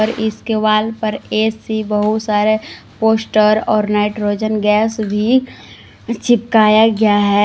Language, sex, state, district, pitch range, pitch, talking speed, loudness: Hindi, female, Jharkhand, Palamu, 210-220 Hz, 215 Hz, 120 wpm, -15 LUFS